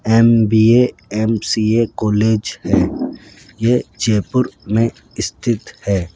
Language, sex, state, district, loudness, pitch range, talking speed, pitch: Hindi, male, Rajasthan, Jaipur, -16 LUFS, 105-115 Hz, 90 wpm, 110 Hz